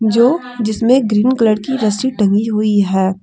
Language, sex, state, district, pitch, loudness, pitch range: Hindi, female, Jharkhand, Deoghar, 220 Hz, -14 LUFS, 210-250 Hz